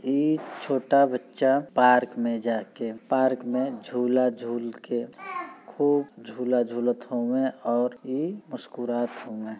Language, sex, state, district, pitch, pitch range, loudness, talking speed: Bhojpuri, male, Uttar Pradesh, Gorakhpur, 125 Hz, 120-135 Hz, -26 LUFS, 120 wpm